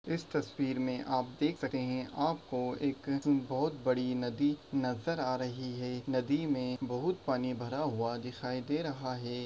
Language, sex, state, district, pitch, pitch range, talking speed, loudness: Hindi, male, Jharkhand, Sahebganj, 130 Hz, 125-145 Hz, 165 wpm, -35 LUFS